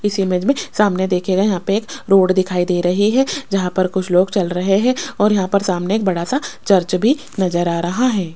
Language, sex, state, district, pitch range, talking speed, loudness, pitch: Hindi, female, Rajasthan, Jaipur, 180-210 Hz, 235 wpm, -17 LUFS, 190 Hz